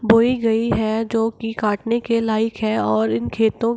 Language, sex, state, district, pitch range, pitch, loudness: Hindi, female, Bihar, Gopalganj, 220-230 Hz, 225 Hz, -20 LUFS